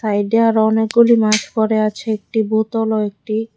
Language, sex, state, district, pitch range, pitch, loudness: Bengali, female, Tripura, West Tripura, 215-225 Hz, 220 Hz, -16 LUFS